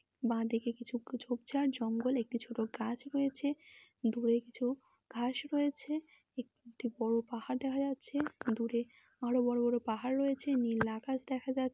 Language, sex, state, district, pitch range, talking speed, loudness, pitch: Bengali, female, West Bengal, Jalpaiguri, 235-270 Hz, 145 wpm, -36 LUFS, 245 Hz